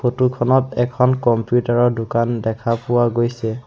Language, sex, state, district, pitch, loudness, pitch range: Assamese, male, Assam, Sonitpur, 120 Hz, -18 LUFS, 115-125 Hz